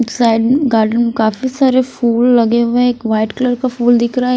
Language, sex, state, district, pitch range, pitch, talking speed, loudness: Hindi, female, Punjab, Kapurthala, 230-250 Hz, 240 Hz, 235 wpm, -13 LUFS